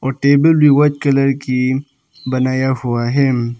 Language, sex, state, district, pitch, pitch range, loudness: Hindi, male, Arunachal Pradesh, Papum Pare, 135 Hz, 130-140 Hz, -15 LUFS